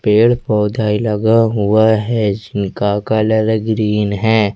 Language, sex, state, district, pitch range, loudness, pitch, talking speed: Hindi, male, Jharkhand, Ranchi, 105-110 Hz, -15 LUFS, 110 Hz, 120 wpm